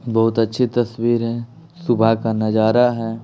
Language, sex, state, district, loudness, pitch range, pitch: Hindi, male, Bihar, Patna, -18 LUFS, 115-120 Hz, 115 Hz